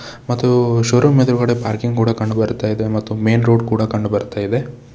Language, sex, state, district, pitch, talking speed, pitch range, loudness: Kannada, male, Karnataka, Bidar, 115 Hz, 160 wpm, 110-120 Hz, -17 LUFS